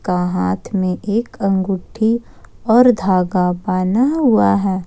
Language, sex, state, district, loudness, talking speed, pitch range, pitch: Hindi, female, Jharkhand, Ranchi, -16 LUFS, 110 wpm, 180-225 Hz, 195 Hz